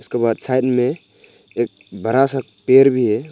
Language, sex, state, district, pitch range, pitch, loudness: Hindi, male, Arunachal Pradesh, Papum Pare, 110-130 Hz, 125 Hz, -17 LUFS